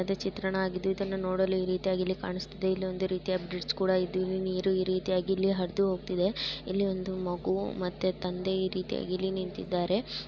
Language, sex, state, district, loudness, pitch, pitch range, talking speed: Kannada, female, Karnataka, Bijapur, -31 LUFS, 185 Hz, 185-190 Hz, 175 wpm